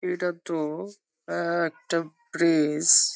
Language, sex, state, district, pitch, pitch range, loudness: Bengali, female, West Bengal, Jhargram, 170 Hz, 160-180 Hz, -25 LUFS